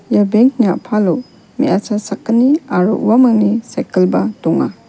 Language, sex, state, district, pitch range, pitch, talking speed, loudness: Garo, female, Meghalaya, West Garo Hills, 200-240 Hz, 215 Hz, 135 wpm, -14 LUFS